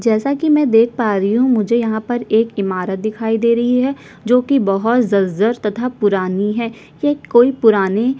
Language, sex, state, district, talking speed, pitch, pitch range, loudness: Hindi, female, Chhattisgarh, Sukma, 185 wpm, 230 Hz, 210-250 Hz, -16 LUFS